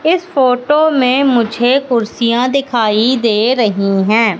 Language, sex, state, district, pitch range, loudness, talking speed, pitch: Hindi, female, Madhya Pradesh, Katni, 225-265 Hz, -13 LUFS, 125 wpm, 245 Hz